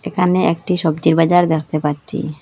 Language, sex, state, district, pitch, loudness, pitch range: Bengali, female, Assam, Hailakandi, 160 Hz, -16 LUFS, 155-175 Hz